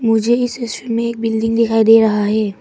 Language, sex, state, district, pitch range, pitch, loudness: Hindi, female, Arunachal Pradesh, Papum Pare, 220-235 Hz, 225 Hz, -15 LUFS